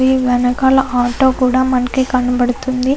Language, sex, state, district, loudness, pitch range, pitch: Telugu, female, Andhra Pradesh, Anantapur, -14 LUFS, 250-260 Hz, 255 Hz